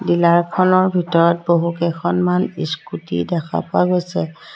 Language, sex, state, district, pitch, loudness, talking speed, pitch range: Assamese, female, Assam, Sonitpur, 170 Hz, -18 LUFS, 120 wpm, 165-180 Hz